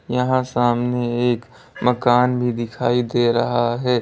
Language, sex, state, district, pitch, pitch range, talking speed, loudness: Hindi, male, Uttar Pradesh, Lalitpur, 120 Hz, 120-125 Hz, 135 wpm, -19 LUFS